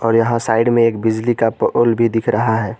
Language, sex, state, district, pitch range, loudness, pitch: Hindi, male, Jharkhand, Garhwa, 110-115 Hz, -16 LUFS, 115 Hz